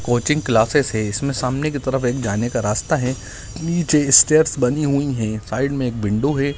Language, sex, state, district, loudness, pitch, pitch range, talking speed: Hindi, male, Bihar, Gaya, -18 LUFS, 130 Hz, 115-145 Hz, 200 wpm